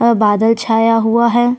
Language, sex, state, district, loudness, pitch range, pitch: Hindi, female, Chhattisgarh, Sukma, -13 LUFS, 225-235 Hz, 230 Hz